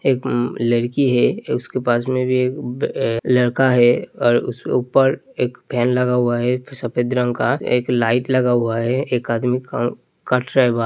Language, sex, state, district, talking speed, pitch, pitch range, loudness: Hindi, male, Uttar Pradesh, Hamirpur, 210 wpm, 125 Hz, 120-130 Hz, -19 LUFS